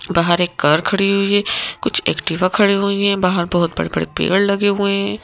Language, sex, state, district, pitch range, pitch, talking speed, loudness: Hindi, female, Madhya Pradesh, Bhopal, 170-200 Hz, 195 Hz, 205 wpm, -17 LUFS